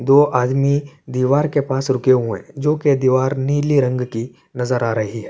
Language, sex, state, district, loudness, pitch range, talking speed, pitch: Urdu, male, Uttar Pradesh, Budaun, -18 LUFS, 125-140 Hz, 190 wpm, 130 Hz